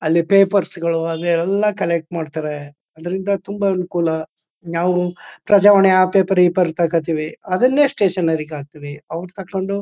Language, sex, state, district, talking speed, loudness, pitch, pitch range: Kannada, male, Karnataka, Chamarajanagar, 135 wpm, -18 LUFS, 175 Hz, 165-195 Hz